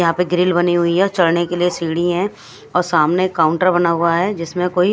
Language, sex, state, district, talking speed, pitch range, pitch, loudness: Hindi, female, Bihar, West Champaran, 245 wpm, 170-180 Hz, 175 Hz, -17 LUFS